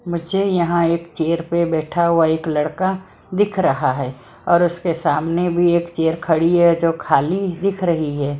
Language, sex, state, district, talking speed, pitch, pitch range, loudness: Hindi, female, Maharashtra, Mumbai Suburban, 180 wpm, 170 Hz, 160-175 Hz, -18 LUFS